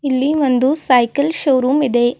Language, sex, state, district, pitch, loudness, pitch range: Kannada, female, Karnataka, Bidar, 265 Hz, -15 LUFS, 255-290 Hz